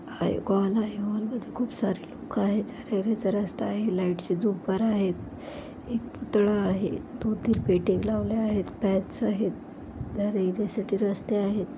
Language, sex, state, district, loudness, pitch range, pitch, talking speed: Marathi, female, Maharashtra, Pune, -28 LUFS, 195-220 Hz, 205 Hz, 135 wpm